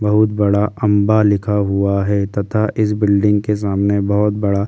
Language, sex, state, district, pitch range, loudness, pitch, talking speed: Hindi, male, Delhi, New Delhi, 100-105 Hz, -16 LUFS, 105 Hz, 180 wpm